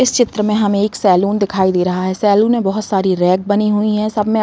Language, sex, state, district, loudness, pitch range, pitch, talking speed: Hindi, female, Uttar Pradesh, Varanasi, -15 LUFS, 190-215 Hz, 205 Hz, 285 wpm